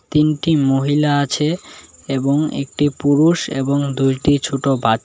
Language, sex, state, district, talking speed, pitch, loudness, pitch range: Bengali, male, Tripura, West Tripura, 120 wpm, 145 Hz, -17 LUFS, 135-150 Hz